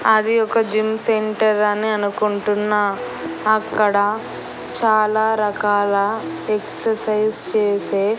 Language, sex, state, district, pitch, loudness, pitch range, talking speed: Telugu, female, Andhra Pradesh, Annamaya, 215 Hz, -19 LUFS, 205-220 Hz, 80 wpm